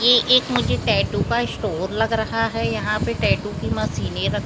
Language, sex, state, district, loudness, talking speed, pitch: Hindi, male, Maharashtra, Mumbai Suburban, -21 LUFS, 240 wpm, 185 Hz